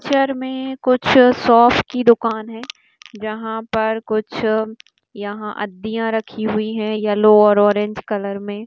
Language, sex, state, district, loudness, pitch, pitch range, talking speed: Hindi, female, Bihar, Kishanganj, -17 LUFS, 220 Hz, 210-235 Hz, 130 wpm